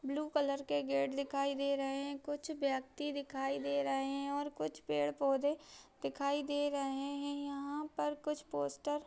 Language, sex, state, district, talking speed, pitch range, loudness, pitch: Hindi, female, Bihar, Darbhanga, 170 wpm, 270-290 Hz, -38 LUFS, 280 Hz